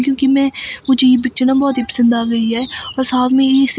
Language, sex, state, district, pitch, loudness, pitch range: Hindi, female, Himachal Pradesh, Shimla, 260 Hz, -14 LUFS, 250-270 Hz